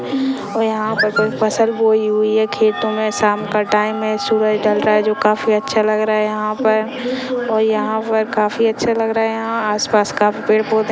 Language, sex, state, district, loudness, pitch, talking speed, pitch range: Hindi, female, Maharashtra, Nagpur, -17 LUFS, 215 Hz, 215 wpm, 215-225 Hz